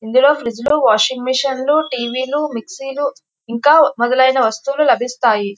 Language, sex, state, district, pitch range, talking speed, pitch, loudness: Telugu, female, Andhra Pradesh, Visakhapatnam, 235-285 Hz, 150 wpm, 260 Hz, -15 LUFS